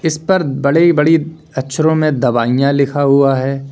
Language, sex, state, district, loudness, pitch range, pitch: Hindi, male, Uttar Pradesh, Lalitpur, -13 LUFS, 135-160 Hz, 140 Hz